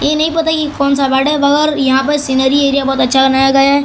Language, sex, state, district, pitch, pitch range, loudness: Hindi, male, Maharashtra, Mumbai Suburban, 280 Hz, 270-295 Hz, -12 LUFS